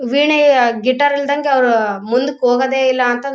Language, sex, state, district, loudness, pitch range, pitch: Kannada, female, Karnataka, Bellary, -14 LUFS, 245-280 Hz, 260 Hz